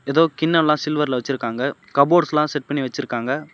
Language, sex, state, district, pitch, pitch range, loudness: Tamil, male, Tamil Nadu, Namakkal, 145 Hz, 135-155 Hz, -20 LUFS